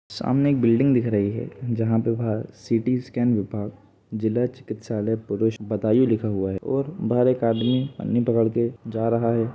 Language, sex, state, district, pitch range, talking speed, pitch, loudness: Hindi, male, Uttar Pradesh, Budaun, 110-125 Hz, 190 wpm, 115 Hz, -23 LUFS